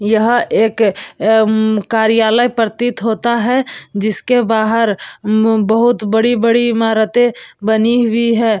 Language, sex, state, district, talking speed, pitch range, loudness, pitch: Hindi, female, Bihar, Vaishali, 110 wpm, 220-235 Hz, -14 LUFS, 225 Hz